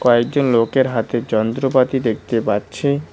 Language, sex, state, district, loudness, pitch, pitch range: Bengali, male, West Bengal, Cooch Behar, -18 LUFS, 120 Hz, 115-135 Hz